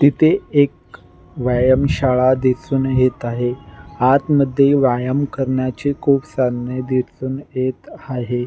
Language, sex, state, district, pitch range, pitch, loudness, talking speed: Marathi, male, Maharashtra, Nagpur, 125-140 Hz, 130 Hz, -18 LUFS, 105 wpm